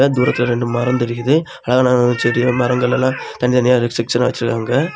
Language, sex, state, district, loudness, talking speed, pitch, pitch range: Tamil, male, Tamil Nadu, Kanyakumari, -16 LUFS, 135 wpm, 125 Hz, 120-125 Hz